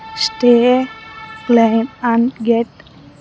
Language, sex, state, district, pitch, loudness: Telugu, female, Andhra Pradesh, Sri Satya Sai, 240 Hz, -14 LUFS